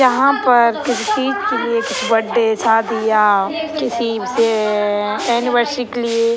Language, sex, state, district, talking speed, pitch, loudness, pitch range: Hindi, male, Bihar, Purnia, 120 wpm, 235 Hz, -16 LUFS, 225-250 Hz